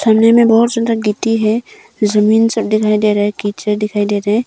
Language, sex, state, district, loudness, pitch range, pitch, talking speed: Hindi, female, Arunachal Pradesh, Longding, -13 LUFS, 210-225 Hz, 215 Hz, 230 wpm